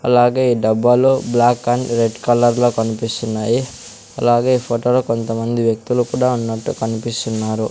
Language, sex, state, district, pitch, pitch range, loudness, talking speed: Telugu, male, Andhra Pradesh, Sri Satya Sai, 120 Hz, 115-125 Hz, -17 LUFS, 140 wpm